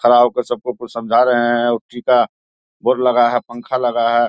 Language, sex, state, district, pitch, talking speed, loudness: Hindi, male, Bihar, Saharsa, 120 Hz, 210 wpm, -17 LUFS